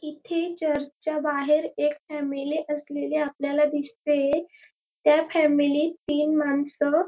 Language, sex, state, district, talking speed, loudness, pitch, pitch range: Marathi, female, Maharashtra, Dhule, 120 wpm, -25 LUFS, 295 Hz, 290-310 Hz